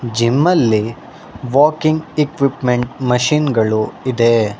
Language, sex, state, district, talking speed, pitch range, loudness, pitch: Kannada, male, Karnataka, Bangalore, 90 wpm, 115-150 Hz, -15 LUFS, 125 Hz